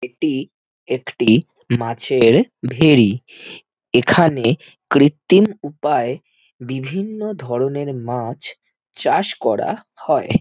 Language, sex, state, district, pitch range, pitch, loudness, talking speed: Bengali, male, West Bengal, Jhargram, 120-160 Hz, 135 Hz, -18 LUFS, 75 wpm